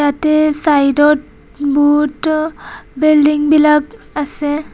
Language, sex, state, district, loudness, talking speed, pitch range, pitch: Assamese, female, Assam, Kamrup Metropolitan, -13 LUFS, 65 wpm, 290-305 Hz, 295 Hz